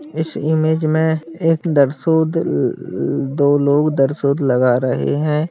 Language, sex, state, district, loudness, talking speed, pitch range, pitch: Hindi, male, Bihar, Lakhisarai, -17 LUFS, 140 wpm, 140-160 Hz, 155 Hz